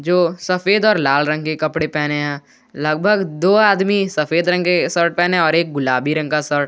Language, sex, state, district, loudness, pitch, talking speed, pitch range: Hindi, male, Jharkhand, Garhwa, -17 LUFS, 160 Hz, 215 wpm, 150-180 Hz